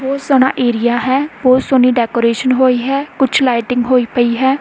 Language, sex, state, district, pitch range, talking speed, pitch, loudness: Punjabi, female, Punjab, Kapurthala, 245-265 Hz, 180 wpm, 255 Hz, -13 LUFS